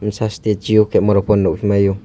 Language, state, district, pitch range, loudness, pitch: Kokborok, Tripura, West Tripura, 100-105 Hz, -16 LUFS, 105 Hz